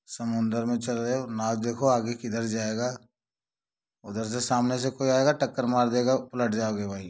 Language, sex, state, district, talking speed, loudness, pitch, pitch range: Hindi, male, Jharkhand, Sahebganj, 185 wpm, -27 LUFS, 120 Hz, 115-125 Hz